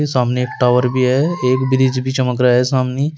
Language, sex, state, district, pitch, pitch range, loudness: Hindi, male, Uttar Pradesh, Shamli, 130 Hz, 125-130 Hz, -16 LUFS